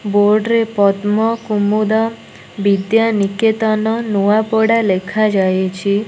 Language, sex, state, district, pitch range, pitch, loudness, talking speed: Odia, female, Odisha, Nuapada, 200-225 Hz, 215 Hz, -15 LUFS, 80 wpm